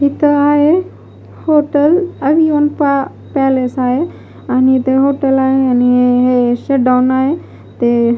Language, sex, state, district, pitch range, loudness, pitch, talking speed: Marathi, female, Maharashtra, Mumbai Suburban, 255-295 Hz, -13 LUFS, 270 Hz, 125 wpm